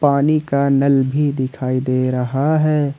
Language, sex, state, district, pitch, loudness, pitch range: Hindi, male, Jharkhand, Ranchi, 140 Hz, -17 LUFS, 130-145 Hz